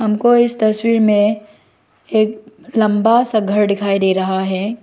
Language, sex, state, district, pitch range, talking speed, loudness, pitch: Hindi, female, Arunachal Pradesh, Lower Dibang Valley, 205-225 Hz, 160 wpm, -15 LUFS, 215 Hz